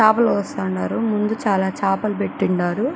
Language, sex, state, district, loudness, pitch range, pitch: Telugu, female, Andhra Pradesh, Chittoor, -20 LUFS, 190-220 Hz, 200 Hz